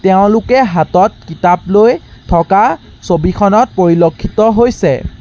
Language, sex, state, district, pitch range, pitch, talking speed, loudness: Assamese, male, Assam, Sonitpur, 175-220 Hz, 190 Hz, 90 wpm, -11 LUFS